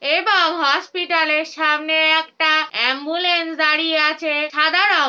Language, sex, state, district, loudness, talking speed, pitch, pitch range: Bengali, female, West Bengal, Kolkata, -17 LUFS, 120 wpm, 315 Hz, 305-330 Hz